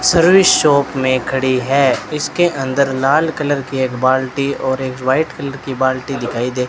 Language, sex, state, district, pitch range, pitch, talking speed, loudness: Hindi, male, Rajasthan, Bikaner, 130-145 Hz, 135 Hz, 180 wpm, -16 LUFS